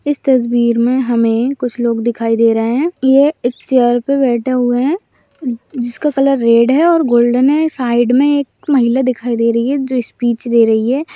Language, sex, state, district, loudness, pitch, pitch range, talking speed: Hindi, female, Uttarakhand, Tehri Garhwal, -14 LUFS, 250 Hz, 235-275 Hz, 205 wpm